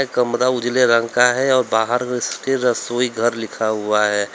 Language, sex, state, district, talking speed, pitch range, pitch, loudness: Hindi, male, Uttar Pradesh, Lalitpur, 165 wpm, 110-125 Hz, 120 Hz, -18 LUFS